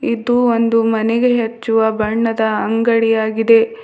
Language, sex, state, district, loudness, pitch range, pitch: Kannada, female, Karnataka, Bidar, -15 LUFS, 225-230 Hz, 225 Hz